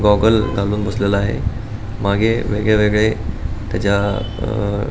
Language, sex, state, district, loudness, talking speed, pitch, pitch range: Marathi, male, Goa, North and South Goa, -18 LUFS, 110 wpm, 105 Hz, 100-110 Hz